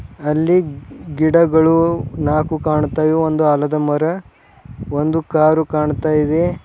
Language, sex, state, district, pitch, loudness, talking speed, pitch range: Kannada, male, Karnataka, Bidar, 155 Hz, -16 LUFS, 110 wpm, 150-160 Hz